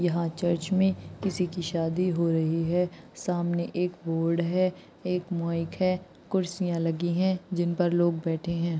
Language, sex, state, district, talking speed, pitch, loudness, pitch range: Hindi, female, Maharashtra, Aurangabad, 170 wpm, 175 Hz, -28 LUFS, 170-180 Hz